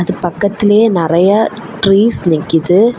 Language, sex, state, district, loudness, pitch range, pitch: Tamil, female, Tamil Nadu, Kanyakumari, -12 LUFS, 175-220 Hz, 195 Hz